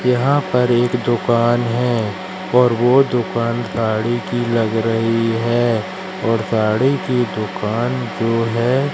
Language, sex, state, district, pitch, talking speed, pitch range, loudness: Hindi, female, Madhya Pradesh, Katni, 120 Hz, 130 wpm, 115-125 Hz, -17 LUFS